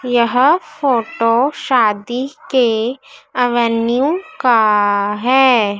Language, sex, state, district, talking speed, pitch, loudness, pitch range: Hindi, female, Madhya Pradesh, Dhar, 70 wpm, 245 Hz, -15 LUFS, 230-265 Hz